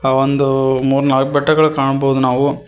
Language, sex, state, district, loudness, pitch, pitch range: Kannada, male, Karnataka, Koppal, -14 LUFS, 135 Hz, 135-140 Hz